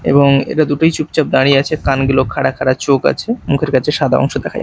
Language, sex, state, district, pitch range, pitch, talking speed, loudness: Bengali, male, Odisha, Malkangiri, 135-155 Hz, 140 Hz, 220 wpm, -14 LUFS